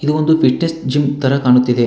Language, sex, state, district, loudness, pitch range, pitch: Kannada, male, Karnataka, Bangalore, -14 LUFS, 125-150 Hz, 140 Hz